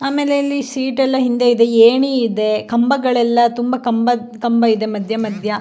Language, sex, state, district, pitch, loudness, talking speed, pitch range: Kannada, female, Karnataka, Shimoga, 240 Hz, -16 LUFS, 170 wpm, 230-260 Hz